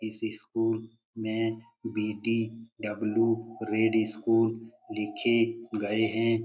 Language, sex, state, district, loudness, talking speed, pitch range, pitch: Hindi, male, Bihar, Lakhisarai, -29 LUFS, 85 wpm, 110-115 Hz, 115 Hz